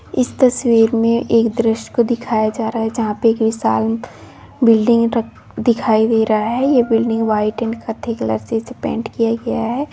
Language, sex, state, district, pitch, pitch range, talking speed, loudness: Hindi, female, West Bengal, Paschim Medinipur, 230 Hz, 220-235 Hz, 195 wpm, -17 LUFS